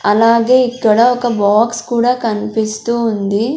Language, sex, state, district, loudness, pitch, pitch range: Telugu, female, Andhra Pradesh, Sri Satya Sai, -14 LUFS, 230 Hz, 215-240 Hz